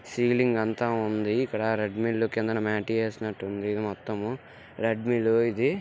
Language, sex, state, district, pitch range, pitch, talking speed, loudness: Telugu, male, Andhra Pradesh, Guntur, 105-115 Hz, 110 Hz, 135 wpm, -27 LUFS